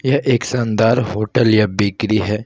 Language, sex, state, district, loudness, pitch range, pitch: Hindi, male, Jharkhand, Ranchi, -16 LUFS, 105-125 Hz, 110 Hz